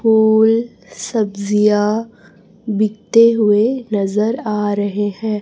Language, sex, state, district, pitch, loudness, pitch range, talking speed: Hindi, female, Chhattisgarh, Raipur, 215 Hz, -16 LUFS, 205-225 Hz, 90 wpm